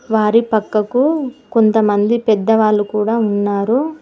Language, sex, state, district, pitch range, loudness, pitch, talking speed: Telugu, female, Telangana, Mahabubabad, 210-240 Hz, -15 LUFS, 220 Hz, 105 wpm